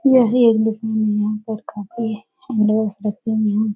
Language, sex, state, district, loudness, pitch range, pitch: Hindi, female, Bihar, Jahanabad, -19 LUFS, 210-225 Hz, 220 Hz